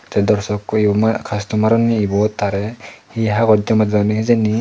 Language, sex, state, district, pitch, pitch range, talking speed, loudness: Chakma, male, Tripura, Dhalai, 110 Hz, 105-110 Hz, 170 wpm, -16 LUFS